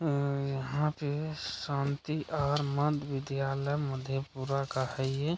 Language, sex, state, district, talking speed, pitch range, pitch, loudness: Hindi, male, Bihar, Madhepura, 125 wpm, 135-150 Hz, 140 Hz, -33 LUFS